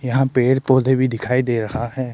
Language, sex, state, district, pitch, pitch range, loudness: Hindi, male, Arunachal Pradesh, Lower Dibang Valley, 130 Hz, 120-130 Hz, -18 LUFS